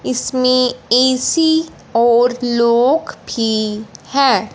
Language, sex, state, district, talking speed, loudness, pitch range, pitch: Hindi, male, Punjab, Fazilka, 80 wpm, -15 LUFS, 235-260 Hz, 245 Hz